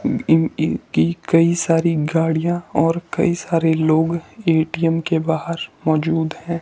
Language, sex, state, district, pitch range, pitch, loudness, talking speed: Hindi, male, Himachal Pradesh, Shimla, 160-170 Hz, 165 Hz, -19 LUFS, 135 wpm